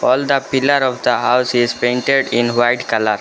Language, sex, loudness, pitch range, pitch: English, male, -15 LUFS, 120-135 Hz, 125 Hz